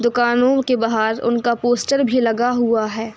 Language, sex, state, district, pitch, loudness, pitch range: Hindi, female, Uttar Pradesh, Hamirpur, 240 Hz, -18 LUFS, 230-245 Hz